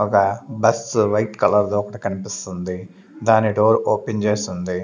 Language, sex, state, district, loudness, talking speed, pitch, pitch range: Telugu, male, Andhra Pradesh, Sri Satya Sai, -20 LUFS, 125 wpm, 105 Hz, 100-110 Hz